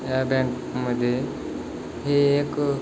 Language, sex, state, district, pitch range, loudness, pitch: Marathi, male, Maharashtra, Chandrapur, 125-140 Hz, -25 LUFS, 130 Hz